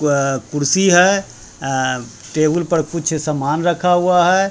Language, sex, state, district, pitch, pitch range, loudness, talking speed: Hindi, male, Bihar, Patna, 160 Hz, 140-175 Hz, -16 LUFS, 145 wpm